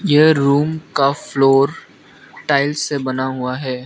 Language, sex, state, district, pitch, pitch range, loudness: Hindi, male, Arunachal Pradesh, Lower Dibang Valley, 140 Hz, 130-150 Hz, -17 LUFS